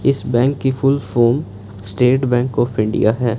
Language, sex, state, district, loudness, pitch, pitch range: Hindi, male, Punjab, Fazilka, -17 LUFS, 120 Hz, 110-135 Hz